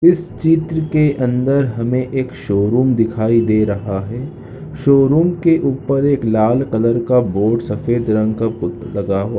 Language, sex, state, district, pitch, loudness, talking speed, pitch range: Hindi, male, Chhattisgarh, Balrampur, 125 Hz, -16 LUFS, 180 wpm, 110-140 Hz